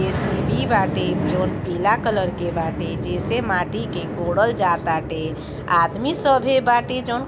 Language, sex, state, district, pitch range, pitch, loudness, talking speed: Bhojpuri, female, Uttar Pradesh, Gorakhpur, 160-240 Hz, 175 Hz, -21 LUFS, 150 wpm